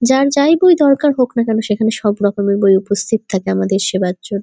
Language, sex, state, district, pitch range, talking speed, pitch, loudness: Bengali, female, West Bengal, North 24 Parganas, 195-260 Hz, 205 wpm, 210 Hz, -14 LUFS